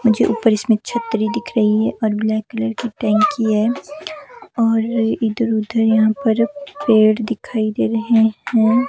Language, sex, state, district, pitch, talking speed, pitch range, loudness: Hindi, female, Himachal Pradesh, Shimla, 225 Hz, 155 wpm, 220-235 Hz, -17 LUFS